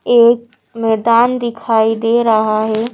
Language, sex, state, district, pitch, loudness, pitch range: Hindi, female, Madhya Pradesh, Bhopal, 230 Hz, -14 LUFS, 220-235 Hz